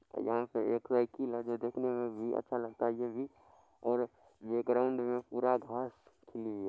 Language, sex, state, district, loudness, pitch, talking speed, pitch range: Maithili, male, Bihar, Supaul, -36 LUFS, 120 Hz, 205 wpm, 115-125 Hz